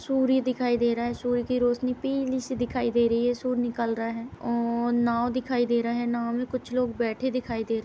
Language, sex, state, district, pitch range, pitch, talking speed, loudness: Hindi, female, Uttar Pradesh, Etah, 235-255 Hz, 240 Hz, 250 wpm, -27 LUFS